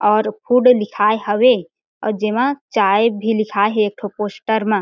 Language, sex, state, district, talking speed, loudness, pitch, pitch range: Chhattisgarhi, female, Chhattisgarh, Jashpur, 175 wpm, -17 LUFS, 215 Hz, 205-230 Hz